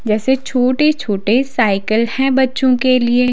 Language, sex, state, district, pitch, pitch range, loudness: Hindi, female, Himachal Pradesh, Shimla, 250 Hz, 230-265 Hz, -15 LUFS